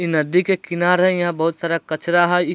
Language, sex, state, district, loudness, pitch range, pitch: Bajjika, male, Bihar, Vaishali, -18 LUFS, 165-180 Hz, 175 Hz